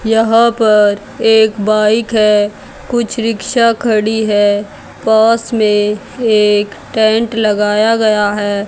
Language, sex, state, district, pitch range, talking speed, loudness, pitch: Hindi, female, Haryana, Jhajjar, 210-225 Hz, 110 wpm, -12 LUFS, 220 Hz